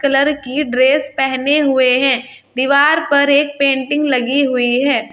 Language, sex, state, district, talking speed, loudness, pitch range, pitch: Hindi, female, Uttar Pradesh, Saharanpur, 140 wpm, -14 LUFS, 260-285 Hz, 275 Hz